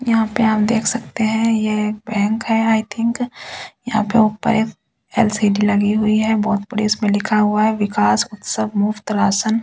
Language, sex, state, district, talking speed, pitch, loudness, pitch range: Hindi, female, Delhi, New Delhi, 180 wpm, 215 Hz, -18 LUFS, 210-225 Hz